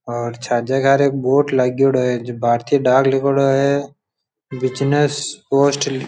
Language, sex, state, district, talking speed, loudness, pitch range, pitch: Rajasthani, male, Rajasthan, Churu, 150 wpm, -17 LUFS, 125-140 Hz, 135 Hz